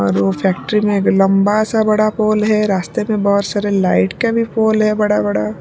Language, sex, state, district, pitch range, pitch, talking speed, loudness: Hindi, female, Punjab, Pathankot, 185-215 Hz, 205 Hz, 235 wpm, -15 LUFS